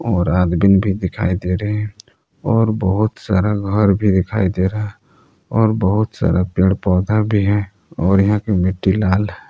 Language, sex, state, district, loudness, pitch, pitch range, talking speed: Hindi, male, Jharkhand, Palamu, -17 LUFS, 100 Hz, 95-105 Hz, 175 wpm